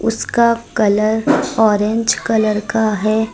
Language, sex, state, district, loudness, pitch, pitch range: Hindi, female, Uttar Pradesh, Lucknow, -15 LUFS, 220 Hz, 215-230 Hz